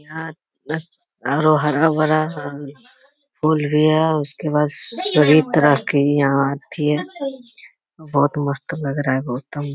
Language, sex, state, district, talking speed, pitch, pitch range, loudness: Hindi, male, Bihar, Jamui, 115 wpm, 150 Hz, 145-160 Hz, -19 LUFS